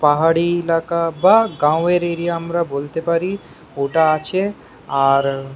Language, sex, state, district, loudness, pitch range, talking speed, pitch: Bengali, male, West Bengal, Kolkata, -18 LUFS, 150-170 Hz, 140 wpm, 165 Hz